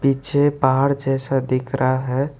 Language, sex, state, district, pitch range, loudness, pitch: Hindi, male, West Bengal, Alipurduar, 130-140 Hz, -19 LUFS, 135 Hz